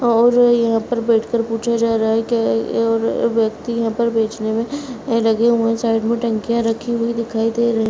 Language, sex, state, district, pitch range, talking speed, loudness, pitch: Hindi, female, Uttar Pradesh, Muzaffarnagar, 225-235 Hz, 220 wpm, -18 LUFS, 230 Hz